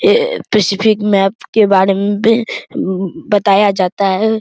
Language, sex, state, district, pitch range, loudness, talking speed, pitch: Hindi, male, Bihar, Araria, 195-220 Hz, -13 LUFS, 135 wpm, 205 Hz